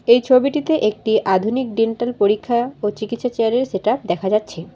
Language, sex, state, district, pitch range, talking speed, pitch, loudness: Bengali, female, West Bengal, Alipurduar, 210-250 Hz, 165 wpm, 225 Hz, -18 LUFS